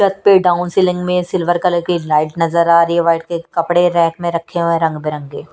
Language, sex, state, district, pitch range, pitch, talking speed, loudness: Hindi, female, Punjab, Kapurthala, 165-180 Hz, 170 Hz, 250 wpm, -15 LUFS